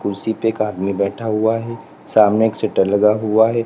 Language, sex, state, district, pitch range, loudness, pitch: Hindi, male, Uttar Pradesh, Lalitpur, 105-110 Hz, -17 LUFS, 110 Hz